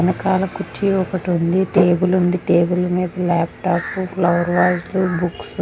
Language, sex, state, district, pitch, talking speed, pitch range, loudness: Telugu, female, Andhra Pradesh, Sri Satya Sai, 180 Hz, 170 wpm, 175-185 Hz, -18 LUFS